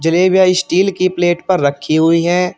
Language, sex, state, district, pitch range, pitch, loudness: Hindi, male, Uttar Pradesh, Shamli, 165-185 Hz, 180 Hz, -13 LUFS